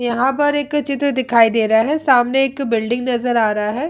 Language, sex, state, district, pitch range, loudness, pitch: Hindi, female, Bihar, Vaishali, 230-280 Hz, -16 LUFS, 250 Hz